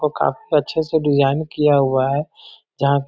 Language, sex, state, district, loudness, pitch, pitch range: Hindi, male, Bihar, Darbhanga, -18 LUFS, 145 Hz, 140-155 Hz